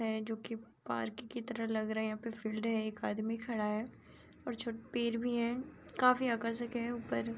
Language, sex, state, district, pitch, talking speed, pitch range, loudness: Hindi, female, Uttar Pradesh, Hamirpur, 230 Hz, 210 wpm, 220-240 Hz, -37 LUFS